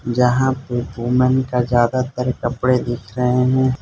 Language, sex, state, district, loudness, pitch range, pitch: Hindi, male, Arunachal Pradesh, Lower Dibang Valley, -18 LUFS, 120-130 Hz, 125 Hz